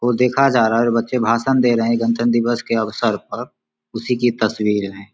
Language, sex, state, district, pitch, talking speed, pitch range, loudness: Hindi, male, Bihar, Samastipur, 115 Hz, 235 wpm, 110-120 Hz, -18 LUFS